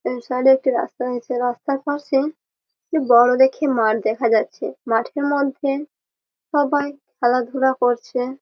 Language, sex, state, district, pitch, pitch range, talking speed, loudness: Bengali, female, West Bengal, Malda, 265 Hz, 245-285 Hz, 120 wpm, -20 LUFS